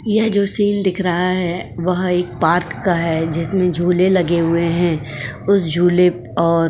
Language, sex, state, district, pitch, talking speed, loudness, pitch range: Hindi, female, Uttar Pradesh, Jyotiba Phule Nagar, 175 Hz, 180 wpm, -17 LUFS, 165-185 Hz